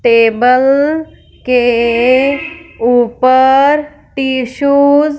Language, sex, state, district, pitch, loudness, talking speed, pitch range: Hindi, female, Punjab, Fazilka, 265 Hz, -11 LUFS, 60 wpm, 245-285 Hz